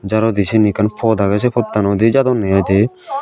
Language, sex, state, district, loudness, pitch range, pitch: Chakma, male, Tripura, Dhalai, -15 LUFS, 100-120 Hz, 110 Hz